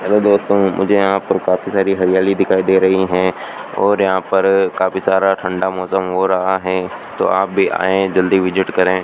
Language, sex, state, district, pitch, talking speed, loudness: Hindi, male, Rajasthan, Bikaner, 95 Hz, 190 wpm, -15 LUFS